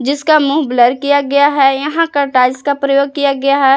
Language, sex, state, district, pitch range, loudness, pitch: Hindi, female, Jharkhand, Palamu, 270-285 Hz, -12 LUFS, 280 Hz